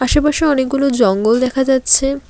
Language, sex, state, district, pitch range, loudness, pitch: Bengali, female, West Bengal, Alipurduar, 255-275 Hz, -14 LUFS, 265 Hz